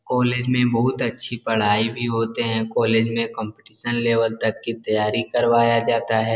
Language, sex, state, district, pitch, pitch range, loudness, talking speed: Hindi, male, Bihar, Darbhanga, 115 Hz, 110-120 Hz, -21 LUFS, 180 wpm